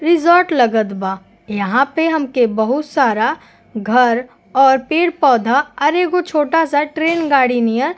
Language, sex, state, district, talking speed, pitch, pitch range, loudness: Bhojpuri, female, Uttar Pradesh, Gorakhpur, 150 wpm, 275 Hz, 235-320 Hz, -15 LUFS